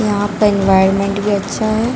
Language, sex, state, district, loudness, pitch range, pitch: Hindi, female, Jharkhand, Jamtara, -15 LUFS, 200-215 Hz, 205 Hz